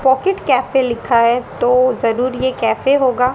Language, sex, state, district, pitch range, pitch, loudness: Hindi, female, Haryana, Charkhi Dadri, 240-265 Hz, 250 Hz, -15 LUFS